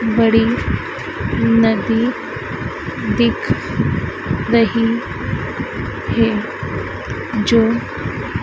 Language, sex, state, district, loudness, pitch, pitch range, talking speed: Hindi, female, Madhya Pradesh, Dhar, -18 LUFS, 230 Hz, 225-230 Hz, 45 wpm